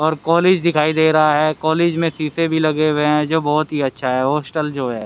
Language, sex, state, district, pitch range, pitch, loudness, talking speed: Hindi, male, Haryana, Rohtak, 150-160 Hz, 155 Hz, -17 LUFS, 250 wpm